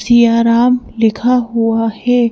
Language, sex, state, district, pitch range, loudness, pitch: Hindi, female, Madhya Pradesh, Bhopal, 225-245 Hz, -13 LUFS, 235 Hz